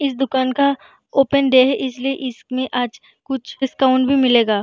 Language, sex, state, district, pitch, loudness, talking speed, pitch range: Hindi, female, Uttar Pradesh, Jyotiba Phule Nagar, 265 Hz, -18 LUFS, 170 wpm, 255-270 Hz